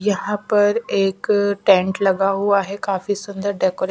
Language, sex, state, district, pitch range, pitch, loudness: Hindi, female, Punjab, Kapurthala, 195-205 Hz, 200 Hz, -19 LUFS